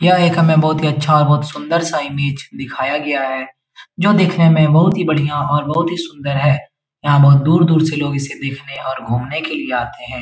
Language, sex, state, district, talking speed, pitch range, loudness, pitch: Hindi, male, Bihar, Jahanabad, 215 wpm, 140-160 Hz, -15 LUFS, 150 Hz